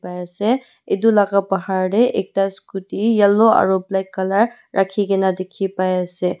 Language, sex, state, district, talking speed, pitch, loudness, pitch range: Nagamese, female, Nagaland, Dimapur, 150 wpm, 195 Hz, -18 LUFS, 190-215 Hz